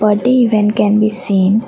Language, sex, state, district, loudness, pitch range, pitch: English, female, Assam, Kamrup Metropolitan, -13 LUFS, 210-225 Hz, 215 Hz